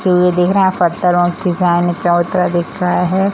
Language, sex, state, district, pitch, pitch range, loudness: Hindi, female, Bihar, Jamui, 180 Hz, 175-180 Hz, -14 LUFS